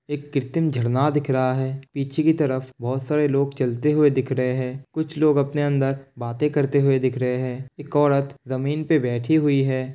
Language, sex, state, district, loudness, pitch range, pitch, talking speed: Hindi, male, Bihar, Kishanganj, -22 LUFS, 130-145 Hz, 140 Hz, 205 wpm